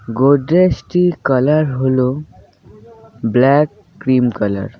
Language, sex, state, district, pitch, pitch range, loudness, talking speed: Bengali, male, West Bengal, Alipurduar, 130 Hz, 110-145 Hz, -15 LUFS, 85 wpm